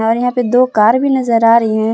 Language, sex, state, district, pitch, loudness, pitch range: Hindi, female, Jharkhand, Palamu, 235 Hz, -12 LUFS, 225-250 Hz